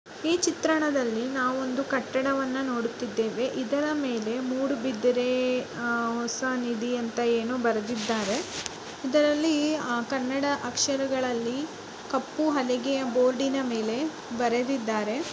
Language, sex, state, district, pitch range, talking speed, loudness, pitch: Kannada, female, Karnataka, Dakshina Kannada, 235-275 Hz, 100 wpm, -27 LUFS, 255 Hz